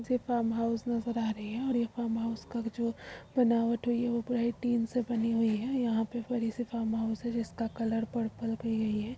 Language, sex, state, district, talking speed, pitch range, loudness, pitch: Hindi, female, Uttar Pradesh, Muzaffarnagar, 235 wpm, 225-240 Hz, -32 LUFS, 230 Hz